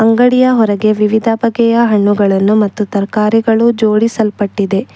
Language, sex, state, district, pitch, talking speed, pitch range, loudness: Kannada, female, Karnataka, Bangalore, 215 Hz, 95 wpm, 205-230 Hz, -12 LUFS